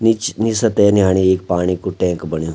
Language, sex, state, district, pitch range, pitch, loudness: Garhwali, male, Uttarakhand, Uttarkashi, 90-110 Hz, 95 Hz, -16 LUFS